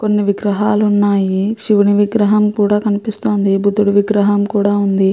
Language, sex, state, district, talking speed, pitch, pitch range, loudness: Telugu, female, Andhra Pradesh, Chittoor, 210 wpm, 205 Hz, 200-210 Hz, -14 LUFS